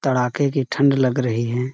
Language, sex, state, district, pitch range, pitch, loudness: Hindi, male, Chhattisgarh, Sarguja, 125-140 Hz, 130 Hz, -20 LUFS